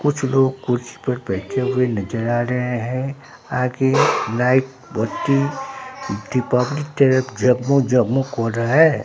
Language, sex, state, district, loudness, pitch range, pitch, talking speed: Hindi, male, Bihar, Katihar, -19 LUFS, 125-135 Hz, 130 Hz, 130 wpm